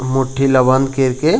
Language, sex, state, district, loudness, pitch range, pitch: Chhattisgarhi, male, Chhattisgarh, Raigarh, -15 LUFS, 130-135 Hz, 135 Hz